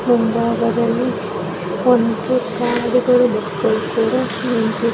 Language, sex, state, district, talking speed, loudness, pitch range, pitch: Kannada, female, Karnataka, Mysore, 75 wpm, -18 LUFS, 220-245 Hz, 230 Hz